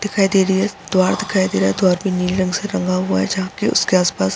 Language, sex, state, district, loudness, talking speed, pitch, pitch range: Hindi, female, Bihar, Saharsa, -17 LUFS, 300 wpm, 185 Hz, 155-195 Hz